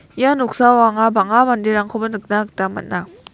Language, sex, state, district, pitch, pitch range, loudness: Garo, female, Meghalaya, West Garo Hills, 225 Hz, 210-245 Hz, -16 LUFS